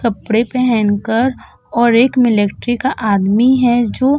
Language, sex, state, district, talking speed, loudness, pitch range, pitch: Hindi, female, Uttar Pradesh, Budaun, 155 wpm, -14 LUFS, 220-255 Hz, 235 Hz